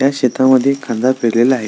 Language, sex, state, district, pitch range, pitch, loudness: Marathi, male, Maharashtra, Solapur, 125-135 Hz, 130 Hz, -14 LUFS